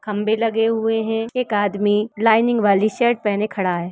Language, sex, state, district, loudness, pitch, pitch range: Hindi, female, Uttar Pradesh, Varanasi, -19 LUFS, 220 Hz, 205-225 Hz